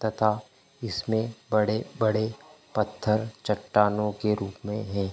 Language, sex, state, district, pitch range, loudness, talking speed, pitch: Hindi, male, Chhattisgarh, Bilaspur, 105-110 Hz, -27 LUFS, 105 wpm, 110 Hz